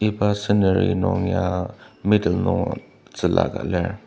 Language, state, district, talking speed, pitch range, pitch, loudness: Ao, Nagaland, Dimapur, 130 wpm, 90-105 Hz, 100 Hz, -21 LUFS